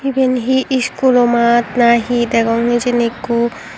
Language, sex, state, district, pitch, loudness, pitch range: Chakma, female, Tripura, Unakoti, 240 Hz, -14 LUFS, 235-255 Hz